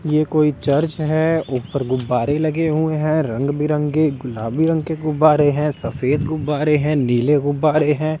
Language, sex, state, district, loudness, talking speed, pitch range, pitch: Hindi, male, Delhi, New Delhi, -18 LUFS, 160 wpm, 140-155 Hz, 150 Hz